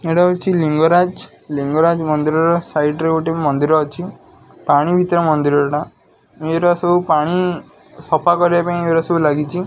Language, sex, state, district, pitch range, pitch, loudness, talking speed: Odia, male, Odisha, Khordha, 150-175 Hz, 165 Hz, -16 LUFS, 130 wpm